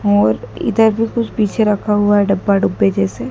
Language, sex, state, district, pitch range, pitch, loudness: Hindi, female, Madhya Pradesh, Dhar, 195-220 Hz, 205 Hz, -15 LUFS